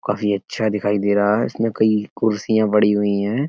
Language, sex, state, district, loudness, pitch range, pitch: Hindi, male, Uttar Pradesh, Etah, -19 LUFS, 105-110 Hz, 105 Hz